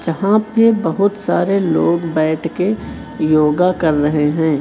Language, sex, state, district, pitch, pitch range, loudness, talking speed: Hindi, male, Chhattisgarh, Raipur, 165 Hz, 155-195 Hz, -16 LUFS, 145 wpm